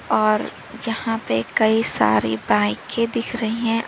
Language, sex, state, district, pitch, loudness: Hindi, female, Uttar Pradesh, Lalitpur, 220 Hz, -21 LUFS